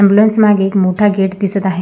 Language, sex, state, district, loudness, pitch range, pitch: Marathi, female, Maharashtra, Sindhudurg, -12 LUFS, 190-205 Hz, 200 Hz